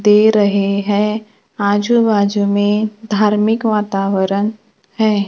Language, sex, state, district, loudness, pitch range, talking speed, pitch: Hindi, female, Maharashtra, Gondia, -15 LUFS, 200-215 Hz, 100 wpm, 210 Hz